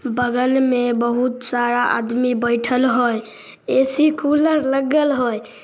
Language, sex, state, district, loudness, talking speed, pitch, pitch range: Maithili, female, Bihar, Samastipur, -18 LUFS, 115 wpm, 250 Hz, 240-270 Hz